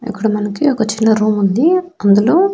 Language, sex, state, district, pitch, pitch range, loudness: Telugu, female, Andhra Pradesh, Annamaya, 220 Hz, 210-295 Hz, -14 LUFS